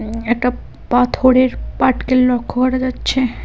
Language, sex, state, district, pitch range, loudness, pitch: Bengali, female, West Bengal, Cooch Behar, 245-255 Hz, -16 LUFS, 255 Hz